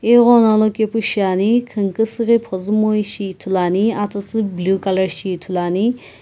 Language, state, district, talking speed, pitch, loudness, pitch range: Sumi, Nagaland, Kohima, 145 wpm, 205 Hz, -17 LUFS, 190-225 Hz